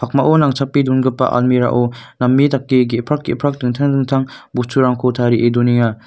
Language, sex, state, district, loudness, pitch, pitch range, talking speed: Garo, male, Meghalaya, North Garo Hills, -15 LUFS, 125 Hz, 120-135 Hz, 140 wpm